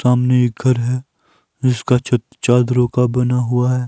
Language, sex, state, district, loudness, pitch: Hindi, male, Himachal Pradesh, Shimla, -17 LUFS, 125 Hz